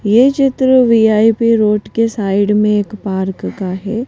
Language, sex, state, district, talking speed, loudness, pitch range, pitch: Hindi, female, Madhya Pradesh, Bhopal, 160 wpm, -13 LUFS, 205-230 Hz, 215 Hz